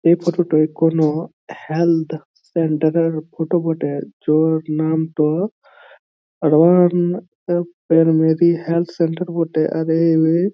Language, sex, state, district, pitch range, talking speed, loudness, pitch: Bengali, male, West Bengal, Jhargram, 160-170 Hz, 90 wpm, -18 LUFS, 165 Hz